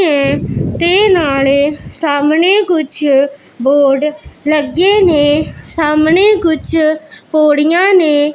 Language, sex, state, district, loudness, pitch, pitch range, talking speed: Punjabi, female, Punjab, Pathankot, -12 LUFS, 305 Hz, 290-335 Hz, 80 wpm